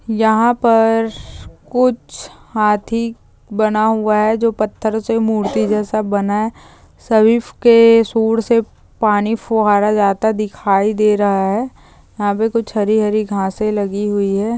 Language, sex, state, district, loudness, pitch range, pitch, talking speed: Hindi, female, Maharashtra, Solapur, -15 LUFS, 210-225 Hz, 215 Hz, 140 wpm